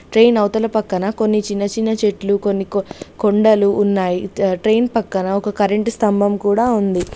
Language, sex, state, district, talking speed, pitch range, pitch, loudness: Telugu, female, Telangana, Mahabubabad, 150 wpm, 200-220 Hz, 205 Hz, -17 LUFS